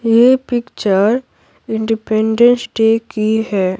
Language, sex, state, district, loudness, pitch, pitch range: Hindi, female, Bihar, Patna, -15 LUFS, 225 Hz, 215-240 Hz